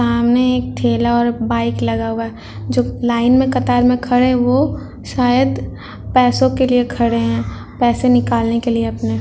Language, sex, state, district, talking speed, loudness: Hindi, female, Bihar, Vaishali, 185 wpm, -16 LUFS